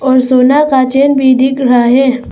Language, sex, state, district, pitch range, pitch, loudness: Hindi, female, Arunachal Pradesh, Papum Pare, 255-270 Hz, 260 Hz, -9 LUFS